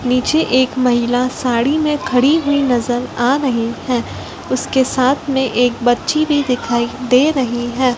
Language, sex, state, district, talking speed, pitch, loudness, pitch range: Hindi, female, Madhya Pradesh, Dhar, 160 wpm, 255 Hz, -16 LUFS, 245-270 Hz